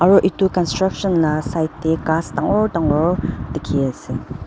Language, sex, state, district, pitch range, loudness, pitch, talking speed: Nagamese, female, Nagaland, Dimapur, 155-190 Hz, -19 LUFS, 165 Hz, 145 wpm